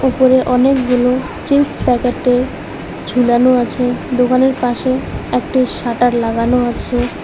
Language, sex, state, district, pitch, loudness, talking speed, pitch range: Bengali, female, West Bengal, Alipurduar, 250 Hz, -14 LUFS, 100 wpm, 245-255 Hz